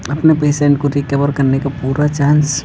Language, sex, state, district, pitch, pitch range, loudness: Hindi, male, Rajasthan, Jaipur, 145 Hz, 140-150 Hz, -14 LUFS